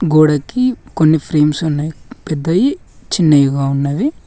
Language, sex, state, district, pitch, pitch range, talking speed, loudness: Telugu, male, Telangana, Mahabubabad, 155 Hz, 145-170 Hz, 100 wpm, -15 LUFS